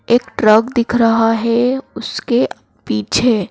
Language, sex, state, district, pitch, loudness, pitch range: Hindi, female, Madhya Pradesh, Dhar, 230 Hz, -15 LUFS, 220-240 Hz